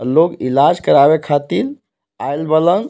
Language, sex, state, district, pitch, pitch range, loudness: Bhojpuri, male, Jharkhand, Palamu, 155 Hz, 140-175 Hz, -14 LUFS